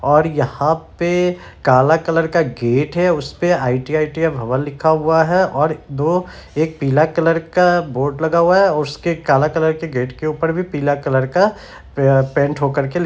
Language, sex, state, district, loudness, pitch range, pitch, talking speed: Hindi, male, Bihar, Samastipur, -17 LUFS, 140-170 Hz, 155 Hz, 195 wpm